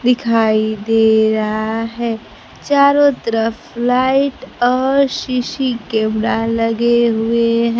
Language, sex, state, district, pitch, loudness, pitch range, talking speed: Hindi, female, Bihar, Kaimur, 235 Hz, -15 LUFS, 225-250 Hz, 100 wpm